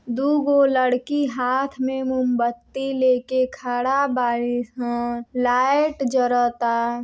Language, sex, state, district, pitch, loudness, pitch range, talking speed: Bhojpuri, female, Uttar Pradesh, Deoria, 255 Hz, -21 LUFS, 245-270 Hz, 110 wpm